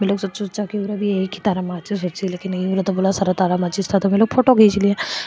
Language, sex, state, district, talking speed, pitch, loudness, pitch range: Marwari, female, Rajasthan, Churu, 115 wpm, 195 Hz, -19 LUFS, 185-205 Hz